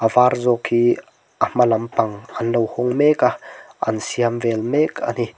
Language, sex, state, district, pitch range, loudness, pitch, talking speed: Mizo, male, Mizoram, Aizawl, 115-125 Hz, -19 LUFS, 120 Hz, 200 wpm